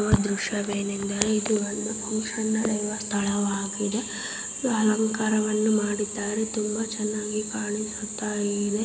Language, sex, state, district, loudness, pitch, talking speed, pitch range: Kannada, female, Karnataka, Raichur, -26 LUFS, 215 Hz, 80 wpm, 205-220 Hz